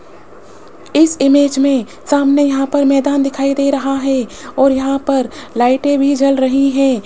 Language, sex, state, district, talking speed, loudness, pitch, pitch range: Hindi, female, Rajasthan, Jaipur, 160 wpm, -14 LUFS, 275 Hz, 270-280 Hz